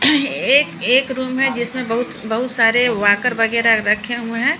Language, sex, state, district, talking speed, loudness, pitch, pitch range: Hindi, female, Bihar, Patna, 170 wpm, -16 LUFS, 240 Hz, 225-260 Hz